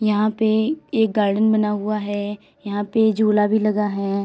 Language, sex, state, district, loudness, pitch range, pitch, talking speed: Hindi, female, Uttar Pradesh, Etah, -20 LUFS, 205-220 Hz, 210 Hz, 185 wpm